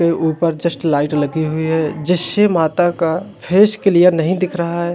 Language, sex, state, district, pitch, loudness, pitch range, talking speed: Hindi, male, Uttarakhand, Uttarkashi, 170 Hz, -16 LUFS, 160-180 Hz, 195 wpm